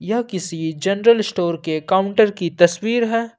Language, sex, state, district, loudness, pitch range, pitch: Hindi, male, Jharkhand, Ranchi, -18 LUFS, 170-230 Hz, 195 Hz